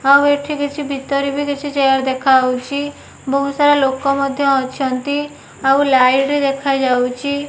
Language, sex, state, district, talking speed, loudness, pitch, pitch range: Odia, female, Odisha, Nuapada, 130 wpm, -16 LUFS, 275 Hz, 265-285 Hz